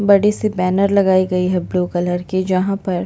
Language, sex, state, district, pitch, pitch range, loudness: Hindi, female, Chhattisgarh, Bastar, 185 Hz, 180-200 Hz, -17 LUFS